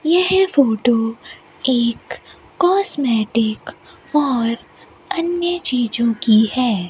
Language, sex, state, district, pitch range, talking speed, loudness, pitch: Hindi, female, Rajasthan, Bikaner, 230-340 Hz, 80 wpm, -17 LUFS, 245 Hz